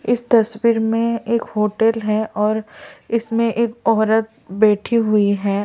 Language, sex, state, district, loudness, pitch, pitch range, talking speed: Hindi, male, Delhi, New Delhi, -18 LUFS, 225 Hz, 210-230 Hz, 140 wpm